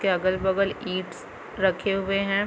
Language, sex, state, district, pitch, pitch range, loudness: Hindi, female, Chhattisgarh, Bilaspur, 190 Hz, 185-195 Hz, -25 LUFS